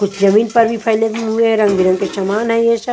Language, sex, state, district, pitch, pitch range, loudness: Hindi, female, Punjab, Kapurthala, 220 Hz, 200-230 Hz, -14 LUFS